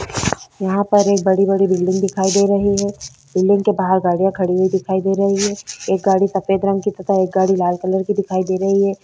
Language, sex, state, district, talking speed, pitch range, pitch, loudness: Hindi, female, Chhattisgarh, Korba, 225 wpm, 190-200 Hz, 195 Hz, -17 LUFS